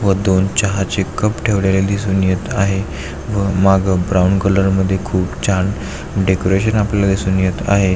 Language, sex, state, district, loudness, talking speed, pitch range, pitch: Marathi, male, Maharashtra, Aurangabad, -16 LUFS, 160 wpm, 95-100 Hz, 95 Hz